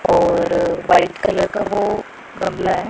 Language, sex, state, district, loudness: Hindi, female, Punjab, Pathankot, -18 LUFS